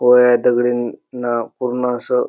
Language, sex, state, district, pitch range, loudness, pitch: Marathi, male, Maharashtra, Dhule, 120-125 Hz, -17 LUFS, 125 Hz